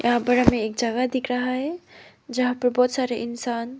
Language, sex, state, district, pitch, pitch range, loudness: Hindi, female, Arunachal Pradesh, Papum Pare, 250 Hz, 240-255 Hz, -23 LUFS